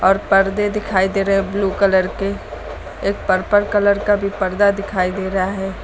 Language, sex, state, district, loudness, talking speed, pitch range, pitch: Hindi, female, Uttar Pradesh, Lucknow, -18 LUFS, 175 wpm, 190-205 Hz, 195 Hz